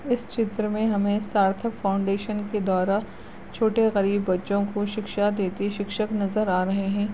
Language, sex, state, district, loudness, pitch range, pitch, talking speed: Hindi, female, Bihar, Supaul, -25 LUFS, 200-215 Hz, 205 Hz, 160 wpm